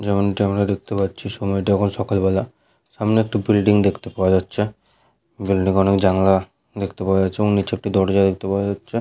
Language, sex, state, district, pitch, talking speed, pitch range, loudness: Bengali, male, West Bengal, Malda, 100 Hz, 185 wpm, 95-105 Hz, -19 LUFS